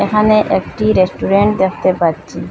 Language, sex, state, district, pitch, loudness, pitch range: Bengali, female, Assam, Hailakandi, 195 Hz, -14 LUFS, 185-215 Hz